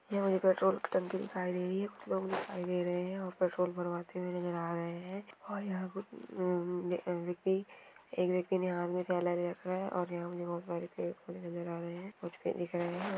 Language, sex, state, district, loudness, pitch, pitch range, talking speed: Hindi, female, Bihar, Saran, -36 LUFS, 180 Hz, 175-190 Hz, 190 wpm